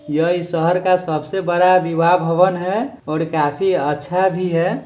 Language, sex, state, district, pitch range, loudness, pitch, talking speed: Hindi, male, Bihar, Sitamarhi, 160-185 Hz, -17 LUFS, 175 Hz, 170 wpm